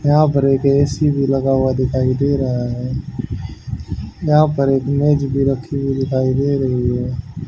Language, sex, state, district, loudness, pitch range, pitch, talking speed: Hindi, male, Haryana, Jhajjar, -17 LUFS, 125-140 Hz, 135 Hz, 175 wpm